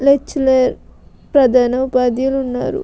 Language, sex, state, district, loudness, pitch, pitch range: Telugu, female, Andhra Pradesh, Krishna, -15 LUFS, 260 Hz, 255-270 Hz